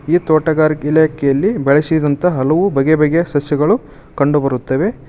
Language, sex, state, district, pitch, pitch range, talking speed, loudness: Kannada, male, Karnataka, Koppal, 150 Hz, 140-160 Hz, 120 wpm, -14 LUFS